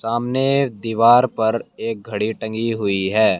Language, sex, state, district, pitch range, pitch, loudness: Hindi, male, Haryana, Jhajjar, 110-120 Hz, 115 Hz, -19 LUFS